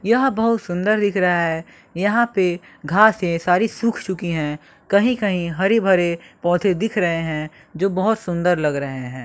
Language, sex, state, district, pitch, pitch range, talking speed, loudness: Hindi, male, Bihar, West Champaran, 180 Hz, 170-215 Hz, 175 wpm, -19 LUFS